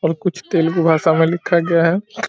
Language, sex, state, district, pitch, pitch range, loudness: Hindi, male, Bihar, Saran, 170 Hz, 165-175 Hz, -16 LUFS